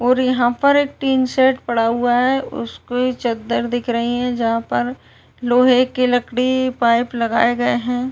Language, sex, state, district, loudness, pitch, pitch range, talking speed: Hindi, female, Uttar Pradesh, Varanasi, -18 LUFS, 245 Hz, 235-255 Hz, 170 wpm